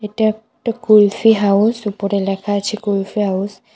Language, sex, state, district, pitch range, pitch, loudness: Bengali, female, West Bengal, Cooch Behar, 200-215 Hz, 210 Hz, -16 LUFS